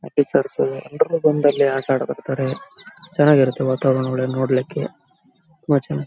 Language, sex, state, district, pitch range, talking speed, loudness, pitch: Kannada, male, Karnataka, Bellary, 130-175 Hz, 80 wpm, -19 LUFS, 140 Hz